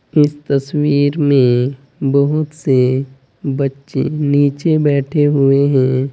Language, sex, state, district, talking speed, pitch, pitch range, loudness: Hindi, male, Uttar Pradesh, Saharanpur, 100 wpm, 140 Hz, 135-145 Hz, -15 LUFS